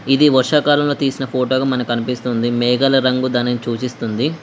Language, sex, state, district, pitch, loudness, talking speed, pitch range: Telugu, female, Telangana, Mahabubabad, 130 Hz, -17 LUFS, 150 wpm, 120-135 Hz